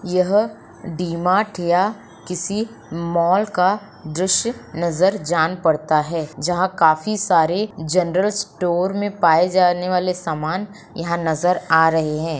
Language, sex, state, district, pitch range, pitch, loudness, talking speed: Hindi, female, Uttar Pradesh, Budaun, 165-190 Hz, 180 Hz, -19 LUFS, 130 wpm